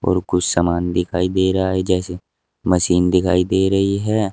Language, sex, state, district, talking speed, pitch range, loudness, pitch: Hindi, male, Uttar Pradesh, Saharanpur, 180 wpm, 90-95 Hz, -18 LUFS, 90 Hz